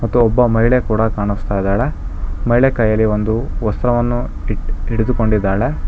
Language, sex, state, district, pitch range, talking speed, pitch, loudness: Kannada, male, Karnataka, Bangalore, 100-120 Hz, 110 wpm, 110 Hz, -17 LUFS